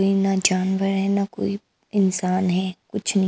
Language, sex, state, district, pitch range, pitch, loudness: Hindi, female, Maharashtra, Mumbai Suburban, 185-200 Hz, 195 Hz, -22 LUFS